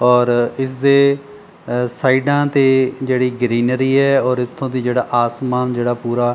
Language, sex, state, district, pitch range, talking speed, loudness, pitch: Punjabi, male, Punjab, Pathankot, 120-135 Hz, 150 wpm, -16 LUFS, 125 Hz